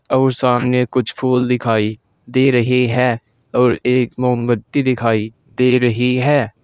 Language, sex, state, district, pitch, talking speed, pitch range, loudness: Hindi, male, Uttar Pradesh, Saharanpur, 125 Hz, 135 wpm, 120-125 Hz, -16 LUFS